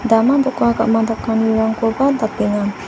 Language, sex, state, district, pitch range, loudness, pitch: Garo, female, Meghalaya, West Garo Hills, 220-240 Hz, -16 LUFS, 225 Hz